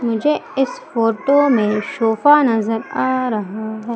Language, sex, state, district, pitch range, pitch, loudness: Hindi, female, Madhya Pradesh, Umaria, 220-270 Hz, 230 Hz, -17 LUFS